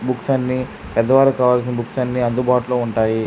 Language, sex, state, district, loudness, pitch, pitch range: Telugu, male, Andhra Pradesh, Krishna, -18 LUFS, 125 Hz, 120-130 Hz